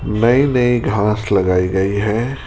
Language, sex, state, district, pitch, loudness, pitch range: Hindi, male, Rajasthan, Jaipur, 105 Hz, -16 LUFS, 100-120 Hz